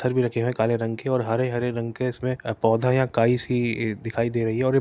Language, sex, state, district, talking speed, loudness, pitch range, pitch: Hindi, male, Uttar Pradesh, Etah, 335 wpm, -24 LUFS, 115-125 Hz, 120 Hz